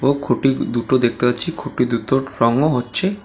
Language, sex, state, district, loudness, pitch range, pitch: Bengali, male, West Bengal, Alipurduar, -19 LUFS, 120-135 Hz, 130 Hz